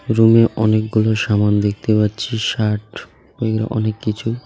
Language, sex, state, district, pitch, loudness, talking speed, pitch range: Bengali, male, West Bengal, Alipurduar, 110 Hz, -17 LUFS, 120 wpm, 105-115 Hz